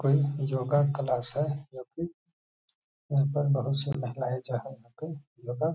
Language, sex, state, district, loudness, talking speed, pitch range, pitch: Hindi, male, Bihar, Gaya, -30 LUFS, 135 wpm, 130-145 Hz, 140 Hz